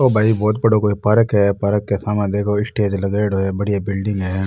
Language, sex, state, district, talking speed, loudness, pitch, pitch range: Rajasthani, male, Rajasthan, Nagaur, 230 wpm, -18 LUFS, 105 Hz, 100-105 Hz